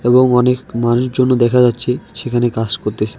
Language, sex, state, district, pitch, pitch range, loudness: Bengali, male, West Bengal, Alipurduar, 120 Hz, 115-125 Hz, -15 LUFS